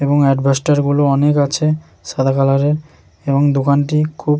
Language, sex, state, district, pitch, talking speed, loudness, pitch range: Bengali, male, West Bengal, Jhargram, 145 Hz, 165 wpm, -15 LUFS, 140-150 Hz